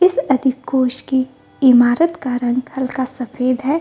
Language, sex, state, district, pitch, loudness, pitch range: Hindi, female, Bihar, Gopalganj, 260 Hz, -17 LUFS, 255-270 Hz